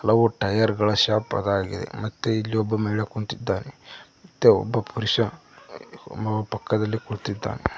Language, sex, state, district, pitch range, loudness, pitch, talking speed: Kannada, male, Karnataka, Koppal, 105-110 Hz, -24 LUFS, 110 Hz, 115 wpm